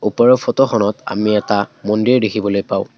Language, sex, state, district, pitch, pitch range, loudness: Assamese, male, Assam, Kamrup Metropolitan, 105 Hz, 105-120 Hz, -16 LUFS